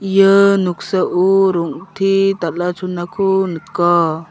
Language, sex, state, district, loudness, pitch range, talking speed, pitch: Garo, male, Meghalaya, South Garo Hills, -15 LUFS, 175-195 Hz, 85 wpm, 185 Hz